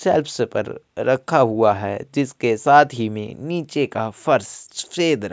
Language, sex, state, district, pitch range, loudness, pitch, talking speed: Hindi, male, Chhattisgarh, Kabirdham, 110-145 Hz, -20 LUFS, 125 Hz, 155 wpm